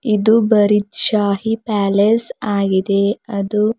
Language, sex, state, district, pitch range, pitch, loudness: Kannada, female, Karnataka, Bidar, 200-220 Hz, 210 Hz, -16 LUFS